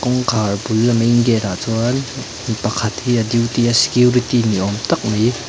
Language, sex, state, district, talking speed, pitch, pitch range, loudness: Mizo, male, Mizoram, Aizawl, 185 wpm, 115 Hz, 110-125 Hz, -17 LUFS